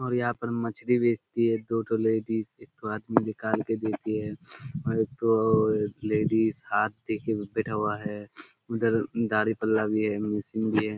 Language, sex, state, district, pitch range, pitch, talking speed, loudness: Hindi, male, Bihar, Kishanganj, 110-115 Hz, 110 Hz, 180 wpm, -28 LUFS